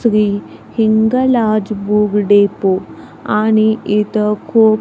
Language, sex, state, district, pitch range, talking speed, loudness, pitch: Marathi, female, Maharashtra, Gondia, 210-220 Hz, 100 wpm, -14 LUFS, 215 Hz